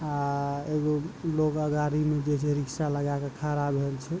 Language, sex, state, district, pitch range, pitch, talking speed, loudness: Maithili, male, Bihar, Supaul, 140-150 Hz, 150 Hz, 200 wpm, -29 LUFS